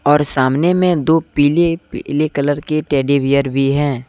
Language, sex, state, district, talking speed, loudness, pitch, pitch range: Hindi, male, Jharkhand, Deoghar, 175 wpm, -15 LUFS, 145 Hz, 140-155 Hz